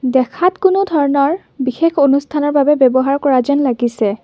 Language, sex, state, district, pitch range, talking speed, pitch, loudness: Assamese, female, Assam, Kamrup Metropolitan, 260-295 Hz, 140 wpm, 280 Hz, -14 LUFS